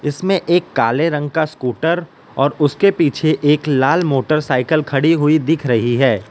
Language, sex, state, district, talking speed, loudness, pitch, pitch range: Hindi, male, Gujarat, Valsad, 160 wpm, -16 LUFS, 150 Hz, 135-160 Hz